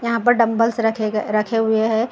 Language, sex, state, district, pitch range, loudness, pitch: Hindi, female, Maharashtra, Gondia, 220-230 Hz, -18 LUFS, 225 Hz